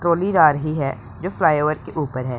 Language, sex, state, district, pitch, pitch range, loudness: Hindi, male, Punjab, Pathankot, 150 Hz, 130-155 Hz, -20 LUFS